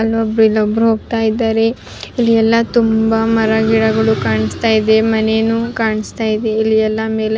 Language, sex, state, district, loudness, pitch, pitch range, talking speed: Kannada, female, Karnataka, Raichur, -14 LUFS, 220 Hz, 220-225 Hz, 130 wpm